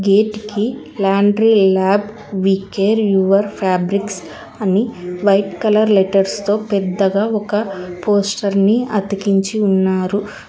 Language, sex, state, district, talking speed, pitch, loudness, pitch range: Telugu, female, Telangana, Hyderabad, 95 wpm, 200 Hz, -16 LUFS, 195-210 Hz